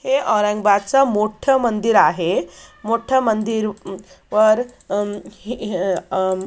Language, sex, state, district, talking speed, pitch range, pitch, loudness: Marathi, female, Maharashtra, Aurangabad, 120 wpm, 190-230 Hz, 210 Hz, -18 LUFS